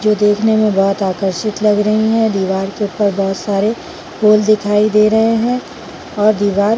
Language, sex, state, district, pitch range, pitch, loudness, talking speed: Hindi, female, Chhattisgarh, Bilaspur, 200-215 Hz, 210 Hz, -14 LUFS, 175 wpm